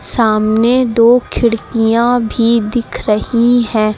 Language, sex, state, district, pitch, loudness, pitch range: Hindi, female, Uttar Pradesh, Lucknow, 230 Hz, -13 LUFS, 225-240 Hz